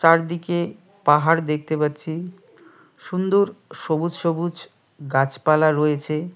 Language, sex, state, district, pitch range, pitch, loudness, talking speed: Bengali, male, West Bengal, Cooch Behar, 155-180 Hz, 165 Hz, -21 LUFS, 85 wpm